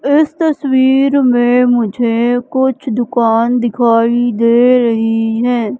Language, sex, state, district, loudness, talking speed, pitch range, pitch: Hindi, female, Madhya Pradesh, Katni, -12 LUFS, 105 wpm, 230-260 Hz, 245 Hz